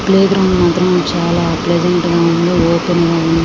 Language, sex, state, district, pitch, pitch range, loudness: Telugu, female, Andhra Pradesh, Srikakulam, 170 Hz, 170-180 Hz, -13 LUFS